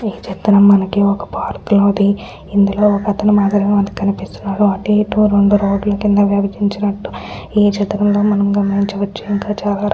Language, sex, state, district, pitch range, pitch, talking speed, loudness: Telugu, female, Telangana, Nalgonda, 200-205 Hz, 205 Hz, 155 wpm, -15 LUFS